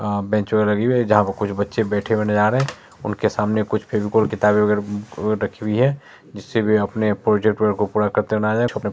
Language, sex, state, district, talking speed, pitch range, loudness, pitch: Maithili, male, Bihar, Supaul, 255 wpm, 105-110 Hz, -20 LUFS, 105 Hz